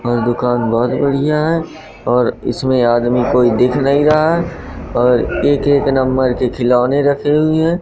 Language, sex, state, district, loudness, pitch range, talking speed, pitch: Hindi, male, Madhya Pradesh, Katni, -14 LUFS, 125-150 Hz, 160 wpm, 130 Hz